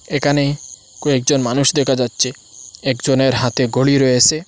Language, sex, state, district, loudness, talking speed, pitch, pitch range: Bengali, male, Assam, Hailakandi, -16 LUFS, 120 wpm, 135 Hz, 125-145 Hz